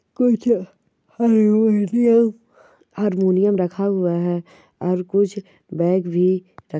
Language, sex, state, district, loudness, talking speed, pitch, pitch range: Hindi, female, Telangana, Karimnagar, -19 LUFS, 95 wpm, 195 Hz, 180-215 Hz